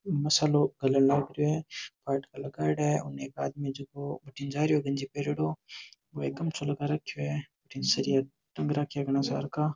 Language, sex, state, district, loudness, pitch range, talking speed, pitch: Marwari, male, Rajasthan, Nagaur, -30 LUFS, 135-150 Hz, 185 wpm, 140 Hz